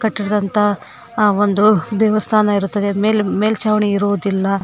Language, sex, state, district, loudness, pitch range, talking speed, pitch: Kannada, female, Karnataka, Koppal, -16 LUFS, 200-215 Hz, 105 wpm, 205 Hz